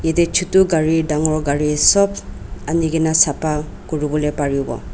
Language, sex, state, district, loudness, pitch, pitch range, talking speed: Nagamese, female, Nagaland, Dimapur, -17 LUFS, 155 Hz, 145-160 Hz, 135 wpm